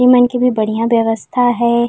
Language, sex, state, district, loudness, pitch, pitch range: Chhattisgarhi, female, Chhattisgarh, Raigarh, -14 LUFS, 235 Hz, 225-245 Hz